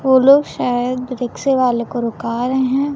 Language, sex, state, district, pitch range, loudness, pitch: Hindi, female, Chhattisgarh, Raipur, 245-265 Hz, -17 LUFS, 255 Hz